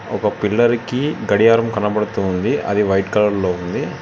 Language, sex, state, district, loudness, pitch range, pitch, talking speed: Telugu, male, Telangana, Hyderabad, -17 LUFS, 95-115 Hz, 105 Hz, 150 wpm